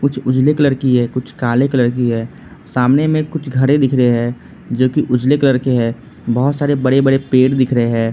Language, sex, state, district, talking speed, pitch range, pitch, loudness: Hindi, male, Arunachal Pradesh, Lower Dibang Valley, 230 wpm, 125-140 Hz, 130 Hz, -15 LUFS